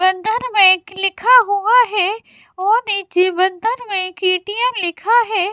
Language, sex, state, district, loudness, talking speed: Hindi, female, Bihar, West Champaran, -16 LUFS, 140 wpm